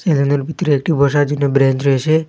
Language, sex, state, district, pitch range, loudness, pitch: Bengali, male, Assam, Hailakandi, 140-155 Hz, -15 LUFS, 145 Hz